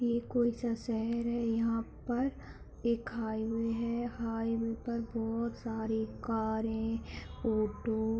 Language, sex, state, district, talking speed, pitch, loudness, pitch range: Hindi, female, Bihar, Supaul, 125 wpm, 230 Hz, -35 LUFS, 225-235 Hz